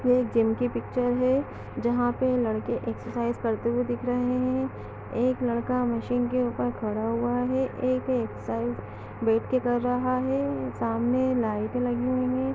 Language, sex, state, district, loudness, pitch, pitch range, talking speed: Hindi, female, Uttar Pradesh, Etah, -27 LUFS, 245 Hz, 230-255 Hz, 165 wpm